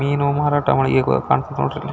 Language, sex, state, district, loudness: Kannada, male, Karnataka, Belgaum, -18 LUFS